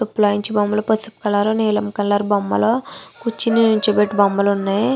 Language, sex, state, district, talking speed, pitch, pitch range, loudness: Telugu, female, Andhra Pradesh, Chittoor, 120 wpm, 210 Hz, 205-220 Hz, -18 LUFS